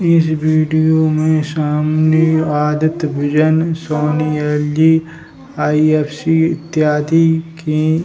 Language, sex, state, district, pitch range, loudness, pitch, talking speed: Hindi, male, Bihar, Jahanabad, 150-160 Hz, -15 LUFS, 155 Hz, 90 wpm